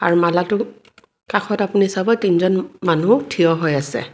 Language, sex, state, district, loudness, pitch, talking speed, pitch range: Assamese, female, Assam, Kamrup Metropolitan, -18 LUFS, 185 Hz, 145 wpm, 170-205 Hz